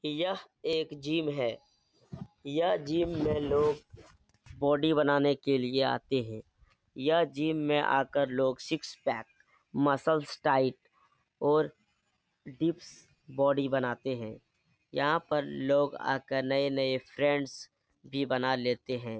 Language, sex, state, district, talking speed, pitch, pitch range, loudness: Hindi, male, Bihar, Jahanabad, 120 wpm, 140 Hz, 130-150 Hz, -30 LUFS